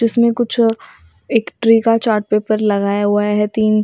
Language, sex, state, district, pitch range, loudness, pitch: Hindi, female, Maharashtra, Mumbai Suburban, 205-230 Hz, -15 LUFS, 215 Hz